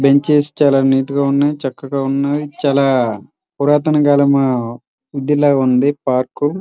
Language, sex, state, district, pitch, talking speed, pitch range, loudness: Telugu, male, Andhra Pradesh, Srikakulam, 140 Hz, 120 wpm, 135-145 Hz, -15 LUFS